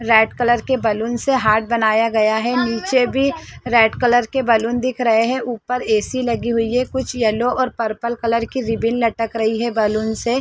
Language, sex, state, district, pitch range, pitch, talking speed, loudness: Hindi, female, Chhattisgarh, Rajnandgaon, 225-250 Hz, 235 Hz, 205 wpm, -18 LUFS